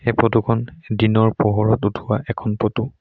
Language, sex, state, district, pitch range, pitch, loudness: Assamese, male, Assam, Sonitpur, 105-115 Hz, 110 Hz, -19 LUFS